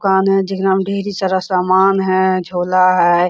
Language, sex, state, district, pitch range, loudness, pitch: Hindi, female, Jharkhand, Sahebganj, 185-195 Hz, -15 LUFS, 190 Hz